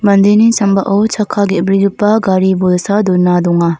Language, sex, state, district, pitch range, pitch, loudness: Garo, female, Meghalaya, North Garo Hills, 185-205 Hz, 195 Hz, -11 LUFS